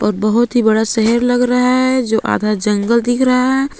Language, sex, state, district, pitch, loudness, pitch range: Hindi, female, Jharkhand, Palamu, 240 Hz, -14 LUFS, 220-250 Hz